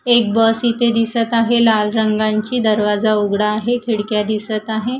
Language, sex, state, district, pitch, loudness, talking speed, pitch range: Marathi, female, Maharashtra, Gondia, 220 Hz, -16 LUFS, 155 wpm, 215-235 Hz